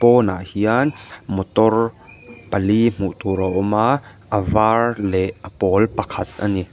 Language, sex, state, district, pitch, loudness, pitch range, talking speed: Mizo, male, Mizoram, Aizawl, 105 Hz, -19 LUFS, 95-115 Hz, 150 wpm